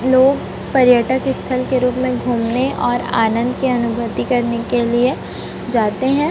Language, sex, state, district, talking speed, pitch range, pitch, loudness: Hindi, female, Chhattisgarh, Raipur, 150 wpm, 235-260 Hz, 245 Hz, -17 LUFS